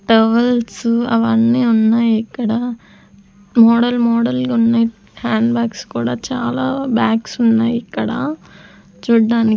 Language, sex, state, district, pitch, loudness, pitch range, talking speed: Telugu, female, Andhra Pradesh, Sri Satya Sai, 230 Hz, -16 LUFS, 220-235 Hz, 90 wpm